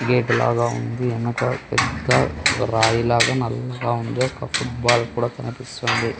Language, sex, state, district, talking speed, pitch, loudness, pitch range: Telugu, male, Andhra Pradesh, Sri Satya Sai, 135 wpm, 120 Hz, -21 LUFS, 115-125 Hz